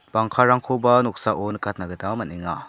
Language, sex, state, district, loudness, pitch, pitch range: Garo, male, Meghalaya, South Garo Hills, -21 LUFS, 110 Hz, 95-125 Hz